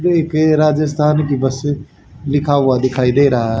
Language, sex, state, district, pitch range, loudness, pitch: Hindi, male, Haryana, Charkhi Dadri, 130-150 Hz, -15 LUFS, 145 Hz